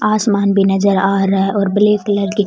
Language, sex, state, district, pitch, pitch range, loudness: Rajasthani, female, Rajasthan, Churu, 200 Hz, 195-205 Hz, -14 LUFS